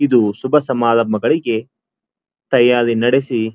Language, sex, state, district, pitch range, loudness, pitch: Kannada, male, Karnataka, Dharwad, 115-130 Hz, -15 LUFS, 120 Hz